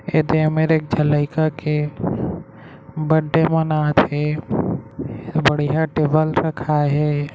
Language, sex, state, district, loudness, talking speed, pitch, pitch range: Chhattisgarhi, male, Chhattisgarh, Raigarh, -19 LUFS, 115 wpm, 155 Hz, 150-160 Hz